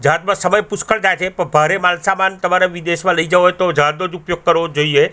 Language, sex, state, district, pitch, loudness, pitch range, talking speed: Gujarati, male, Gujarat, Gandhinagar, 180 Hz, -15 LUFS, 170-190 Hz, 235 wpm